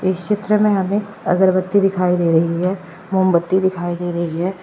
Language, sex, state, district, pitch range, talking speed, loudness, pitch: Hindi, female, Uttar Pradesh, Lalitpur, 175-195 Hz, 180 wpm, -18 LUFS, 185 Hz